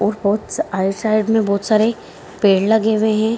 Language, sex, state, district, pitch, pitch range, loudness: Hindi, female, Bihar, Kishanganj, 215 Hz, 200-220 Hz, -17 LUFS